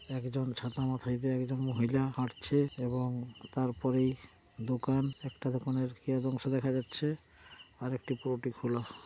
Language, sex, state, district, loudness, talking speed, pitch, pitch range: Bengali, male, West Bengal, Paschim Medinipur, -34 LUFS, 130 wpm, 130 Hz, 125-130 Hz